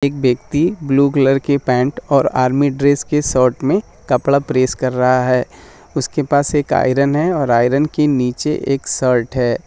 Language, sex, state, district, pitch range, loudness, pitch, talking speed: Hindi, male, Jharkhand, Jamtara, 125-145 Hz, -16 LUFS, 135 Hz, 180 wpm